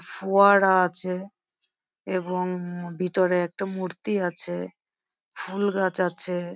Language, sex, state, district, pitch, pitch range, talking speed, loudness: Bengali, female, West Bengal, Jhargram, 180 Hz, 175-190 Hz, 90 wpm, -24 LUFS